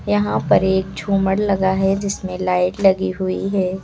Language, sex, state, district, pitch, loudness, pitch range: Hindi, female, Uttar Pradesh, Lucknow, 190 Hz, -18 LUFS, 180-195 Hz